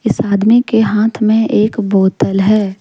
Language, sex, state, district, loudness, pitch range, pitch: Hindi, female, Jharkhand, Deoghar, -12 LUFS, 200-225 Hz, 215 Hz